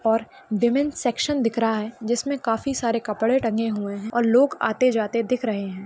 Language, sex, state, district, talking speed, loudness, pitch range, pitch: Hindi, female, Maharashtra, Pune, 225 wpm, -23 LUFS, 220-250 Hz, 230 Hz